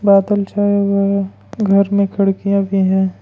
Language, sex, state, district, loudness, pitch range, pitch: Hindi, male, Jharkhand, Ranchi, -15 LUFS, 195-200 Hz, 200 Hz